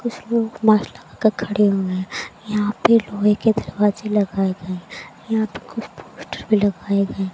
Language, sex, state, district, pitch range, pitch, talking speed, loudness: Hindi, female, Haryana, Jhajjar, 195-220 Hz, 210 Hz, 170 wpm, -20 LUFS